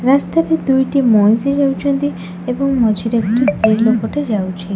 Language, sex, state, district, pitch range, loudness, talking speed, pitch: Odia, female, Odisha, Khordha, 220-275 Hz, -15 LUFS, 125 wpm, 245 Hz